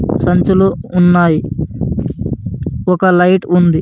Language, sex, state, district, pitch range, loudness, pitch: Telugu, male, Andhra Pradesh, Anantapur, 175-185 Hz, -13 LUFS, 180 Hz